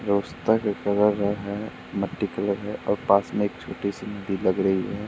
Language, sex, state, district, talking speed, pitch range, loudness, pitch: Hindi, male, Uttar Pradesh, Muzaffarnagar, 225 wpm, 100-105 Hz, -25 LUFS, 100 Hz